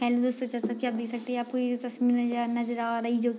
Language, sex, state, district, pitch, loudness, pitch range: Hindi, female, Bihar, Madhepura, 240 Hz, -29 LUFS, 235-245 Hz